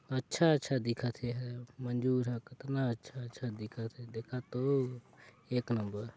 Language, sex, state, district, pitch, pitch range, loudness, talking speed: Hindi, male, Chhattisgarh, Sarguja, 125 Hz, 120-130 Hz, -36 LUFS, 145 wpm